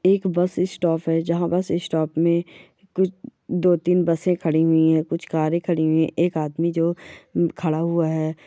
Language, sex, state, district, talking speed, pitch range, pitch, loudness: Hindi, female, Chhattisgarh, Rajnandgaon, 175 wpm, 160-180 Hz, 170 Hz, -21 LUFS